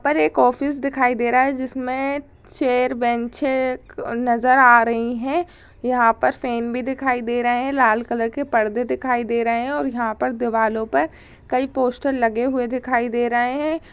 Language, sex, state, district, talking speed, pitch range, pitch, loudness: Hindi, female, Uttar Pradesh, Jyotiba Phule Nagar, 180 wpm, 235-265 Hz, 250 Hz, -20 LUFS